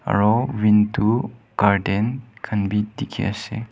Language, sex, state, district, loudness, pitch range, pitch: Nagamese, male, Nagaland, Kohima, -21 LUFS, 105-115 Hz, 105 Hz